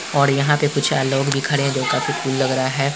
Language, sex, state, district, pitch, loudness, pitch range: Hindi, male, Bihar, Purnia, 140 Hz, -19 LUFS, 135-140 Hz